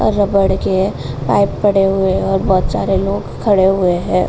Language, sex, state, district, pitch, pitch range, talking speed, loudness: Hindi, female, Uttar Pradesh, Jalaun, 195 Hz, 185-200 Hz, 195 wpm, -15 LUFS